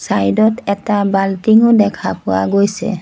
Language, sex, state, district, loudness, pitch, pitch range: Assamese, female, Assam, Sonitpur, -14 LUFS, 200 Hz, 195-220 Hz